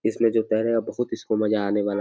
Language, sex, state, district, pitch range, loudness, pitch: Hindi, male, Uttar Pradesh, Deoria, 105-115 Hz, -24 LUFS, 110 Hz